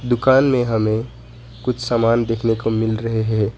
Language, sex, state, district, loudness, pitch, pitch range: Hindi, male, West Bengal, Alipurduar, -18 LUFS, 115 Hz, 110-120 Hz